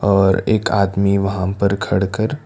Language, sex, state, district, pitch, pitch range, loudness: Hindi, male, Karnataka, Bangalore, 100 Hz, 95-105 Hz, -17 LUFS